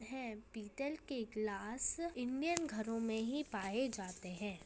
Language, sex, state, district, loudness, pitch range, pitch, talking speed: Hindi, female, Bihar, Saharsa, -41 LUFS, 210-265 Hz, 230 Hz, 140 wpm